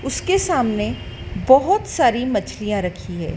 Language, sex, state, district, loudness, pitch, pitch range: Hindi, female, Madhya Pradesh, Dhar, -19 LUFS, 240 Hz, 205-335 Hz